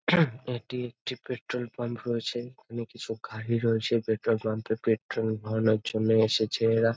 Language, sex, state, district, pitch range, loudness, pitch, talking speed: Bengali, male, West Bengal, North 24 Parganas, 110-120 Hz, -29 LUFS, 115 Hz, 155 wpm